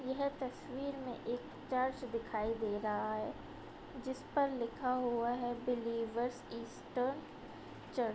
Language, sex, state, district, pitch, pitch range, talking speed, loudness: Hindi, female, Uttar Pradesh, Budaun, 250 Hz, 235-260 Hz, 140 wpm, -39 LUFS